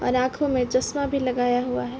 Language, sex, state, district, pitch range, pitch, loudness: Hindi, female, Uttar Pradesh, Varanasi, 245-275 Hz, 255 Hz, -24 LUFS